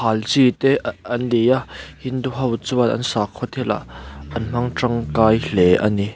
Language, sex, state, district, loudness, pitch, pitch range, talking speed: Mizo, male, Mizoram, Aizawl, -19 LUFS, 120 Hz, 105-125 Hz, 175 wpm